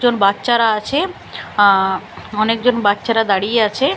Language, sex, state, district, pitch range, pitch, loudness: Bengali, female, Bihar, Katihar, 200-240 Hz, 220 Hz, -16 LUFS